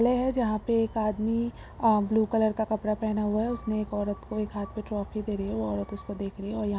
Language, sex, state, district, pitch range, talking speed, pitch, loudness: Hindi, female, Jharkhand, Sahebganj, 205-220 Hz, 275 wpm, 215 Hz, -29 LUFS